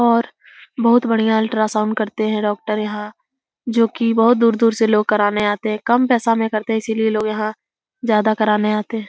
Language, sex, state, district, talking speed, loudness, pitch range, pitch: Hindi, female, Bihar, Jahanabad, 190 wpm, -18 LUFS, 215-230 Hz, 220 Hz